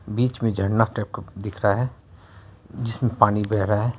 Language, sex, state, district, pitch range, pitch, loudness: Hindi, male, Bihar, Araria, 100-120 Hz, 105 Hz, -23 LUFS